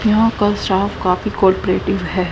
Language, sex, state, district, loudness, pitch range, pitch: Hindi, female, Haryana, Rohtak, -17 LUFS, 185-215 Hz, 195 Hz